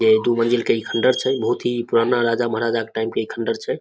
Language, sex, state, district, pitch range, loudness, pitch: Maithili, male, Bihar, Samastipur, 115-120 Hz, -20 LUFS, 115 Hz